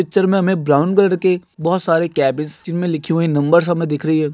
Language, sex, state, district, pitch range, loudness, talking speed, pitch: Hindi, male, Andhra Pradesh, Guntur, 155-185 Hz, -17 LUFS, 235 wpm, 170 Hz